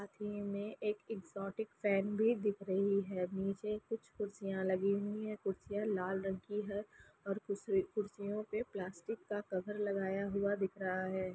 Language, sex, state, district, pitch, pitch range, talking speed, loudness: Hindi, female, Chhattisgarh, Raigarh, 200 Hz, 195-210 Hz, 175 wpm, -39 LUFS